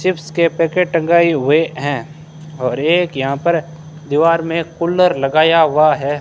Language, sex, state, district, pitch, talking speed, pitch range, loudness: Hindi, male, Rajasthan, Bikaner, 160 Hz, 155 wpm, 150-170 Hz, -15 LUFS